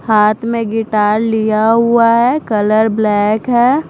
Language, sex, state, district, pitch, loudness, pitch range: Hindi, female, Punjab, Fazilka, 220 Hz, -13 LUFS, 215-235 Hz